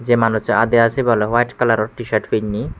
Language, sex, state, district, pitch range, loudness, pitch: Chakma, male, Tripura, West Tripura, 110-120 Hz, -17 LUFS, 115 Hz